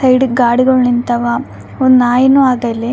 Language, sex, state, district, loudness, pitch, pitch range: Kannada, female, Karnataka, Raichur, -12 LUFS, 250 Hz, 240-260 Hz